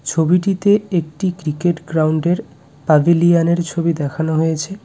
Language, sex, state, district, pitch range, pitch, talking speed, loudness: Bengali, male, West Bengal, Cooch Behar, 155-175 Hz, 165 Hz, 125 wpm, -17 LUFS